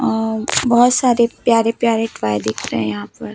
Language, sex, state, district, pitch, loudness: Hindi, female, Chhattisgarh, Raipur, 225 Hz, -17 LUFS